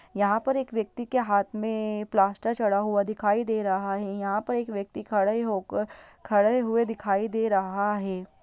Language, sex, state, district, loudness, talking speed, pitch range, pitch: Hindi, female, Bihar, Jamui, -26 LUFS, 185 wpm, 200-225 Hz, 210 Hz